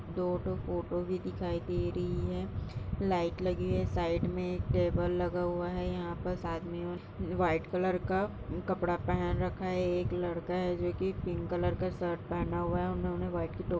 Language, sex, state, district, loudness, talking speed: Hindi, female, Uttar Pradesh, Jyotiba Phule Nagar, -34 LUFS, 200 wpm